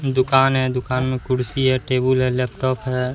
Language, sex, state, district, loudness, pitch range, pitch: Hindi, male, Bihar, Katihar, -20 LUFS, 125-130 Hz, 130 Hz